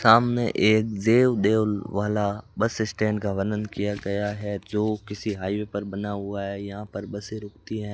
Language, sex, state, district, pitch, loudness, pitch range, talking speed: Hindi, male, Rajasthan, Bikaner, 105 Hz, -25 LUFS, 100-110 Hz, 180 wpm